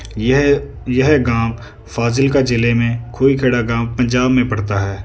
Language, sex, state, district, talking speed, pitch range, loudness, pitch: Hindi, male, Punjab, Fazilka, 155 wpm, 115-130 Hz, -16 LUFS, 120 Hz